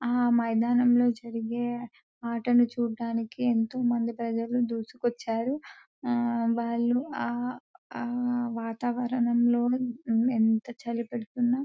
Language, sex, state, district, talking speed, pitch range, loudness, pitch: Telugu, female, Telangana, Nalgonda, 105 wpm, 235-245 Hz, -28 LUFS, 240 Hz